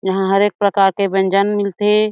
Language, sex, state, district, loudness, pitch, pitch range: Chhattisgarhi, female, Chhattisgarh, Jashpur, -16 LUFS, 200 Hz, 195-205 Hz